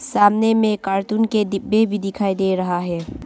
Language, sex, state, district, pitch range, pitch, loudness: Hindi, female, Arunachal Pradesh, Longding, 195-215 Hz, 205 Hz, -19 LUFS